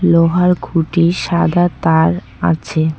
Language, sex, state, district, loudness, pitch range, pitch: Bengali, female, West Bengal, Cooch Behar, -15 LUFS, 160-175 Hz, 170 Hz